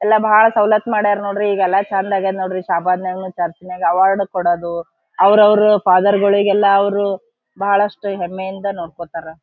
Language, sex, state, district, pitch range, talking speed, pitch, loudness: Kannada, female, Karnataka, Gulbarga, 185-205 Hz, 155 wpm, 195 Hz, -16 LUFS